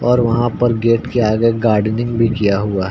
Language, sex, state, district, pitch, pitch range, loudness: Hindi, male, Uttar Pradesh, Ghazipur, 115 Hz, 110-120 Hz, -15 LUFS